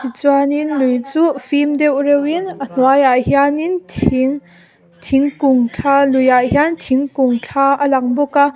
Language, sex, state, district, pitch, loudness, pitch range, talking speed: Mizo, female, Mizoram, Aizawl, 280 Hz, -14 LUFS, 260-290 Hz, 140 wpm